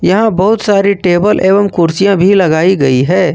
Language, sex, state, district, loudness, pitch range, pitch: Hindi, male, Jharkhand, Ranchi, -10 LUFS, 175-200 Hz, 190 Hz